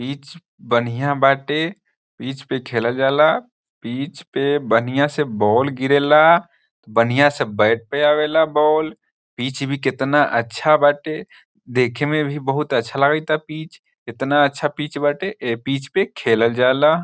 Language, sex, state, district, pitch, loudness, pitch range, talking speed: Bhojpuri, male, Bihar, Saran, 145 Hz, -18 LUFS, 130-155 Hz, 110 wpm